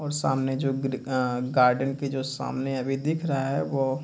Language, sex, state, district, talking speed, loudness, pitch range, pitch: Hindi, male, Bihar, Kishanganj, 225 wpm, -26 LUFS, 130-140 Hz, 135 Hz